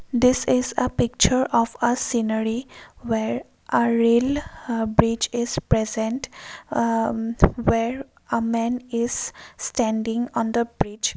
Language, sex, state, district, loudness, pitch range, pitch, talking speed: English, female, Assam, Kamrup Metropolitan, -23 LUFS, 225-245 Hz, 235 Hz, 125 wpm